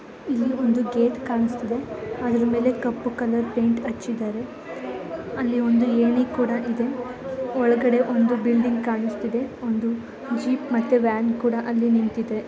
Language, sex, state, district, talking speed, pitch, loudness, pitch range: Kannada, female, Karnataka, Mysore, 130 wpm, 240 Hz, -23 LUFS, 235-245 Hz